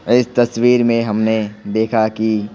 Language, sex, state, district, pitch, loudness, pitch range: Hindi, male, Bihar, Patna, 110 Hz, -16 LUFS, 110-120 Hz